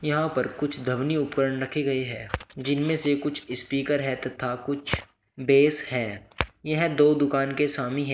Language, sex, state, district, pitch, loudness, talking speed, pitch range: Hindi, male, Uttar Pradesh, Shamli, 135 Hz, -26 LUFS, 170 wpm, 125-145 Hz